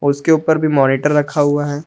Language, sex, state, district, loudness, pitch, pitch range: Hindi, male, Jharkhand, Palamu, -15 LUFS, 145 Hz, 145-155 Hz